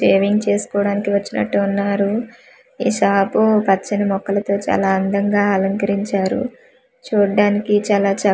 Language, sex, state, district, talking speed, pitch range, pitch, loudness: Telugu, female, Andhra Pradesh, Manyam, 110 wpm, 200-210 Hz, 200 Hz, -18 LUFS